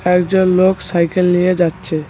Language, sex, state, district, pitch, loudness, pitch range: Bengali, male, West Bengal, Cooch Behar, 180 Hz, -14 LUFS, 175-185 Hz